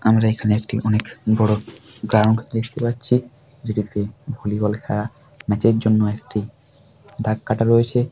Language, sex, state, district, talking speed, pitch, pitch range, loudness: Bengali, male, West Bengal, Paschim Medinipur, 135 wpm, 110 Hz, 105-120 Hz, -20 LUFS